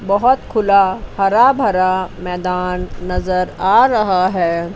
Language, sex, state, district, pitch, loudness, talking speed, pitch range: Hindi, female, Chandigarh, Chandigarh, 185 Hz, -15 LUFS, 115 wpm, 180-200 Hz